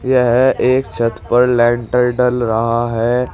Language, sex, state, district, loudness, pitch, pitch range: Hindi, male, Uttar Pradesh, Saharanpur, -15 LUFS, 120 Hz, 115-125 Hz